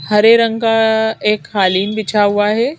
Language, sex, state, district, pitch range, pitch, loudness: Hindi, female, Madhya Pradesh, Bhopal, 205-225 Hz, 215 Hz, -14 LUFS